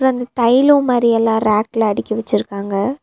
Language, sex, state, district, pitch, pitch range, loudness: Tamil, female, Tamil Nadu, Nilgiris, 230 Hz, 215-255 Hz, -16 LUFS